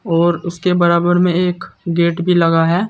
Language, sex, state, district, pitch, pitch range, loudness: Hindi, male, Uttar Pradesh, Saharanpur, 175 Hz, 170-180 Hz, -15 LUFS